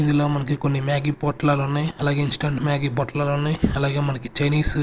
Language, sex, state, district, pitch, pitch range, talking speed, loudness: Telugu, male, Andhra Pradesh, Sri Satya Sai, 145 Hz, 140-145 Hz, 160 wpm, -21 LUFS